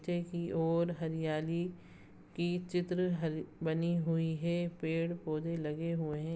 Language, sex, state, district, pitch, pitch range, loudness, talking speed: Hindi, female, Chhattisgarh, Raigarh, 165 Hz, 160-175 Hz, -35 LUFS, 130 wpm